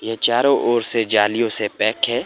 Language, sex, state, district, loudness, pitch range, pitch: Hindi, male, Himachal Pradesh, Shimla, -18 LUFS, 110-120 Hz, 115 Hz